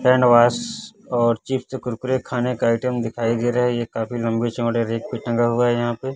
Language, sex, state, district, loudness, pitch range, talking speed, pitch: Hindi, male, Chhattisgarh, Raipur, -21 LUFS, 115-125 Hz, 215 wpm, 120 Hz